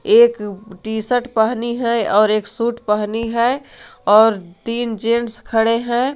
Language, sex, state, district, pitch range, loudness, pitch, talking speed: Hindi, female, Jharkhand, Garhwa, 215-240 Hz, -17 LUFS, 230 Hz, 145 wpm